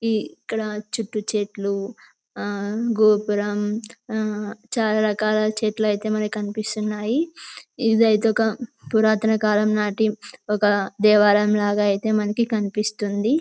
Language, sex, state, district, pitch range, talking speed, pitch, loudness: Telugu, female, Telangana, Karimnagar, 210-220 Hz, 90 wpm, 215 Hz, -22 LUFS